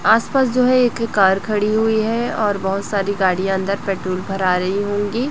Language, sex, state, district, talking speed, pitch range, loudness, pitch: Hindi, female, Chhattisgarh, Raipur, 205 wpm, 195-225 Hz, -18 LUFS, 205 Hz